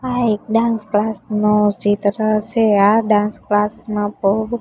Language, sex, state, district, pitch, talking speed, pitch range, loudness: Gujarati, female, Gujarat, Gandhinagar, 210 Hz, 155 wpm, 205-220 Hz, -17 LUFS